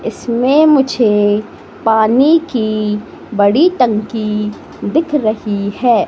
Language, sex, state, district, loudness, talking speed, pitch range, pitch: Hindi, female, Madhya Pradesh, Katni, -14 LUFS, 90 wpm, 210-275 Hz, 225 Hz